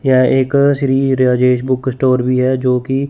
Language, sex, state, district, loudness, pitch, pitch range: Hindi, male, Chandigarh, Chandigarh, -14 LUFS, 130 Hz, 125-135 Hz